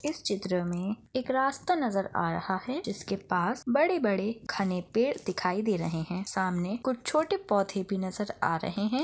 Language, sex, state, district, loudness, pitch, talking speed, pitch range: Hindi, female, Chhattisgarh, Bastar, -30 LUFS, 200 Hz, 190 wpm, 185-255 Hz